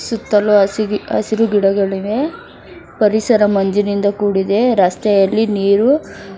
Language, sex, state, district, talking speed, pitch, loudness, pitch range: Kannada, female, Karnataka, Bangalore, 95 wpm, 205 Hz, -15 LUFS, 200-220 Hz